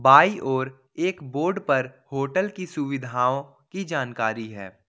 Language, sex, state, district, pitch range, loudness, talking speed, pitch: Hindi, male, Jharkhand, Ranchi, 130-170 Hz, -25 LUFS, 135 wpm, 135 Hz